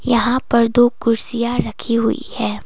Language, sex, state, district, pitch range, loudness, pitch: Hindi, female, Sikkim, Gangtok, 230-240 Hz, -16 LUFS, 235 Hz